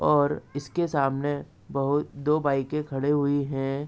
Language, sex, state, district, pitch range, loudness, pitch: Hindi, male, Uttar Pradesh, Ghazipur, 135-145 Hz, -27 LUFS, 145 Hz